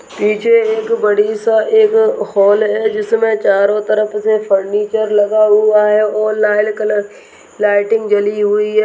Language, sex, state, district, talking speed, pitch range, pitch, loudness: Hindi, male, Rajasthan, Nagaur, 150 wpm, 210-220 Hz, 215 Hz, -13 LUFS